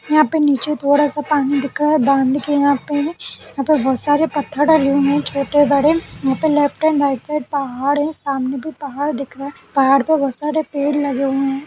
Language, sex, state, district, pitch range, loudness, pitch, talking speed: Hindi, female, Uttarakhand, Uttarkashi, 275-300 Hz, -17 LUFS, 285 Hz, 230 wpm